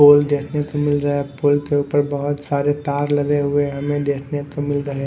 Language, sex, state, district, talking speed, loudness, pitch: Hindi, female, Himachal Pradesh, Shimla, 235 wpm, -19 LUFS, 145 Hz